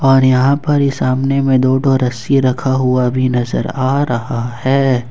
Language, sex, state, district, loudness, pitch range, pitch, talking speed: Hindi, male, Jharkhand, Ranchi, -14 LUFS, 125-135 Hz, 130 Hz, 190 wpm